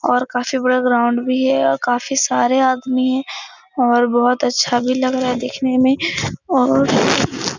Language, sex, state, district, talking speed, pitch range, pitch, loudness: Hindi, female, Bihar, Supaul, 175 wpm, 245-260 Hz, 255 Hz, -16 LUFS